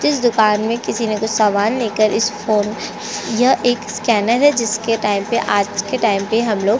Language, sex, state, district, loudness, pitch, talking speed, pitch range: Hindi, female, Chhattisgarh, Korba, -17 LUFS, 215 Hz, 170 wpm, 210-235 Hz